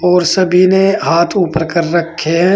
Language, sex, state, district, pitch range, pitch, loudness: Hindi, male, Uttar Pradesh, Saharanpur, 170-185 Hz, 180 Hz, -12 LUFS